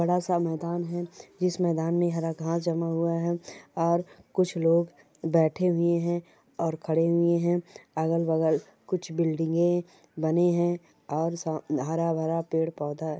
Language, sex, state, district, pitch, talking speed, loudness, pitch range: Hindi, female, Chhattisgarh, Jashpur, 170 Hz, 155 wpm, -27 LUFS, 160-175 Hz